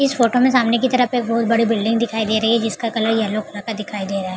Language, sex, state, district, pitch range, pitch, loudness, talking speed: Hindi, female, Bihar, Begusarai, 215-235 Hz, 230 Hz, -18 LUFS, 330 wpm